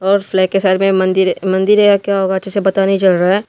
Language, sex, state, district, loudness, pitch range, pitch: Hindi, male, Tripura, West Tripura, -13 LUFS, 190-195 Hz, 195 Hz